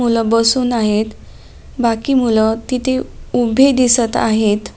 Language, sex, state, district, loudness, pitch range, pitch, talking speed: Marathi, female, Maharashtra, Nagpur, -15 LUFS, 225-255 Hz, 230 Hz, 115 wpm